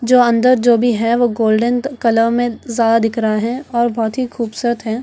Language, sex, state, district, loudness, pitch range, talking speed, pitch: Hindi, female, Delhi, New Delhi, -15 LUFS, 230-245 Hz, 215 wpm, 235 Hz